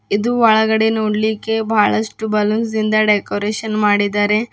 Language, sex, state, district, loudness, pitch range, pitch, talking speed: Kannada, female, Karnataka, Bidar, -16 LUFS, 210-220 Hz, 215 Hz, 95 wpm